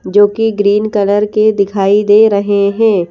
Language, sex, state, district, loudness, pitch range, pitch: Hindi, female, Madhya Pradesh, Bhopal, -11 LUFS, 200-215 Hz, 205 Hz